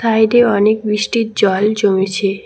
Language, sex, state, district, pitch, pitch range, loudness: Bengali, female, West Bengal, Cooch Behar, 210 Hz, 200-220 Hz, -14 LUFS